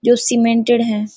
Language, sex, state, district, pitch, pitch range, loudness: Hindi, female, Uttarakhand, Uttarkashi, 235 Hz, 230-240 Hz, -15 LUFS